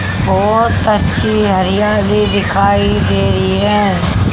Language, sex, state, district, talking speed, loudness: Hindi, female, Haryana, Charkhi Dadri, 95 wpm, -13 LUFS